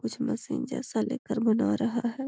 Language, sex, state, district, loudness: Magahi, female, Bihar, Gaya, -29 LUFS